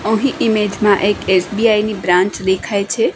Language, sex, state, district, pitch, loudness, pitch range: Gujarati, female, Gujarat, Gandhinagar, 205 Hz, -15 LUFS, 190-220 Hz